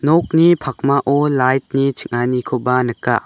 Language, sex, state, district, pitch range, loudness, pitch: Garo, male, Meghalaya, West Garo Hills, 125-145 Hz, -16 LUFS, 135 Hz